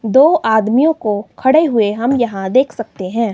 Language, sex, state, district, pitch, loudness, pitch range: Hindi, female, Himachal Pradesh, Shimla, 230 Hz, -14 LUFS, 210-265 Hz